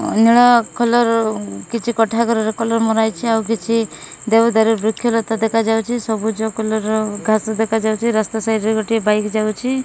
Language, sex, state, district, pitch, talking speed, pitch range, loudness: Odia, female, Odisha, Malkangiri, 225 Hz, 140 wpm, 220-230 Hz, -17 LUFS